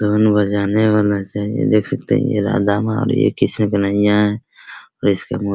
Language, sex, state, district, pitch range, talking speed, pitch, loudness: Hindi, male, Bihar, Araria, 100-110 Hz, 195 wpm, 105 Hz, -17 LUFS